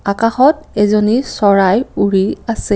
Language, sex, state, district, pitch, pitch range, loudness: Assamese, female, Assam, Kamrup Metropolitan, 210 Hz, 200-240 Hz, -13 LUFS